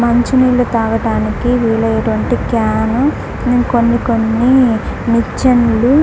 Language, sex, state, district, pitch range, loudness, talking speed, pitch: Telugu, female, Andhra Pradesh, Guntur, 225-245 Hz, -13 LUFS, 70 wpm, 235 Hz